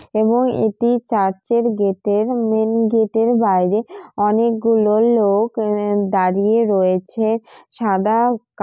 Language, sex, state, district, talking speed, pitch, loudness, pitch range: Bengali, female, West Bengal, Jalpaiguri, 105 wpm, 220 Hz, -17 LUFS, 205-230 Hz